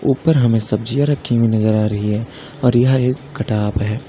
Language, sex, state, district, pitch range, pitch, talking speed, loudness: Hindi, male, Uttar Pradesh, Lalitpur, 110-135 Hz, 120 Hz, 205 wpm, -16 LUFS